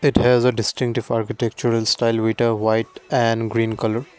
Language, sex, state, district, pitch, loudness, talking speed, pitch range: English, male, Assam, Kamrup Metropolitan, 115 Hz, -20 LUFS, 170 wpm, 110-120 Hz